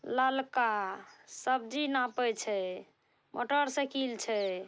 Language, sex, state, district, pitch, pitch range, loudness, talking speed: Maithili, female, Bihar, Saharsa, 245 Hz, 215-265 Hz, -32 LUFS, 75 wpm